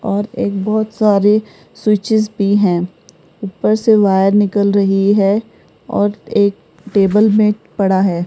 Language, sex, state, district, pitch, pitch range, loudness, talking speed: Hindi, female, Rajasthan, Jaipur, 205 Hz, 195-215 Hz, -14 LUFS, 140 wpm